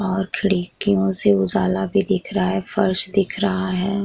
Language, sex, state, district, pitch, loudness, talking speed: Hindi, female, Bihar, Vaishali, 190 Hz, -19 LUFS, 180 wpm